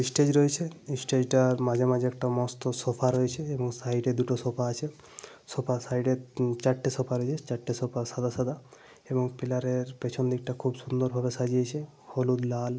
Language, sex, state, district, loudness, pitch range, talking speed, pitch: Bengali, male, Jharkhand, Sahebganj, -29 LUFS, 125-130 Hz, 165 wpm, 125 Hz